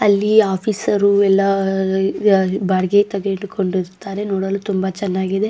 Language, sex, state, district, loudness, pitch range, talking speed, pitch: Kannada, female, Karnataka, Dakshina Kannada, -17 LUFS, 190-200 Hz, 85 wpm, 195 Hz